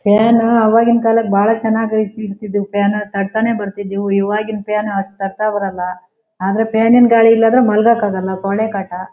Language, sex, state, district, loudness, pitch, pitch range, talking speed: Kannada, female, Karnataka, Shimoga, -15 LUFS, 210 Hz, 200-225 Hz, 150 wpm